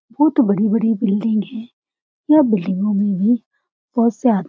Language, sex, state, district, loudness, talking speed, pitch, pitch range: Hindi, female, Bihar, Supaul, -17 LUFS, 145 wpm, 225 Hz, 205-240 Hz